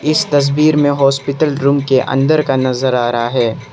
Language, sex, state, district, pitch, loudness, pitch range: Hindi, male, Arunachal Pradesh, Lower Dibang Valley, 140 Hz, -14 LUFS, 130-145 Hz